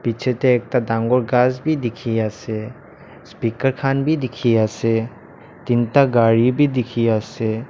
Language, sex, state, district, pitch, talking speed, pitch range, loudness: Nagamese, male, Nagaland, Dimapur, 120 Hz, 140 wpm, 115-130 Hz, -19 LUFS